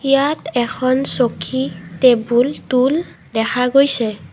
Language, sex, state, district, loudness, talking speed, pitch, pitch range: Assamese, female, Assam, Kamrup Metropolitan, -16 LUFS, 95 wpm, 255 Hz, 240-275 Hz